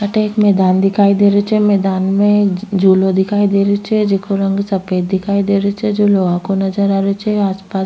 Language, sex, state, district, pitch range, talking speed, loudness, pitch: Rajasthani, female, Rajasthan, Nagaur, 190-205 Hz, 230 wpm, -14 LUFS, 200 Hz